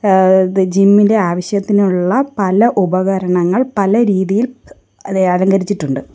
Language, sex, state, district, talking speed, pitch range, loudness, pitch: Malayalam, female, Kerala, Kollam, 105 wpm, 185-205 Hz, -13 LUFS, 195 Hz